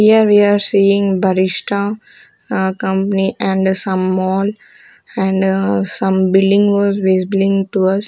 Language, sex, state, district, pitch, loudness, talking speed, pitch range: English, female, Chandigarh, Chandigarh, 195 Hz, -15 LUFS, 120 wpm, 190-200 Hz